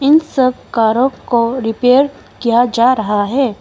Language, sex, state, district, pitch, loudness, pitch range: Hindi, female, Arunachal Pradesh, Longding, 250 Hz, -14 LUFS, 230-265 Hz